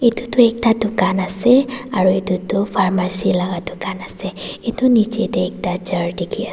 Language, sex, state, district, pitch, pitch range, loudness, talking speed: Nagamese, female, Nagaland, Dimapur, 200 Hz, 185-230 Hz, -18 LUFS, 165 wpm